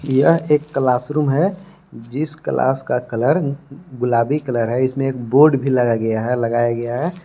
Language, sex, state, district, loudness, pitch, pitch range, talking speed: Hindi, male, Jharkhand, Palamu, -18 LUFS, 135 Hz, 120-150 Hz, 155 wpm